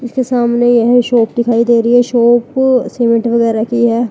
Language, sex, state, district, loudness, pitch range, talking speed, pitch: Hindi, female, Uttar Pradesh, Lalitpur, -12 LUFS, 235-245 Hz, 190 wpm, 235 Hz